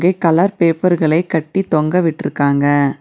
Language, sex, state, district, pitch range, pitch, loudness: Tamil, female, Tamil Nadu, Nilgiris, 155-180 Hz, 165 Hz, -15 LUFS